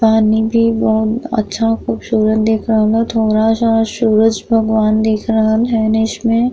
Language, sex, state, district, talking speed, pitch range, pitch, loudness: Bhojpuri, female, Uttar Pradesh, Gorakhpur, 165 wpm, 220-225 Hz, 220 Hz, -14 LUFS